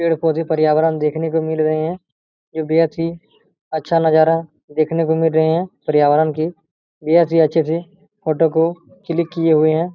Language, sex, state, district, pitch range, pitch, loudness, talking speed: Hindi, male, Bihar, Araria, 155-165 Hz, 160 Hz, -17 LUFS, 150 wpm